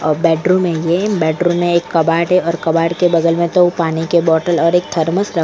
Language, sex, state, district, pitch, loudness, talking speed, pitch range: Hindi, female, Goa, North and South Goa, 170 Hz, -14 LUFS, 265 wpm, 165-175 Hz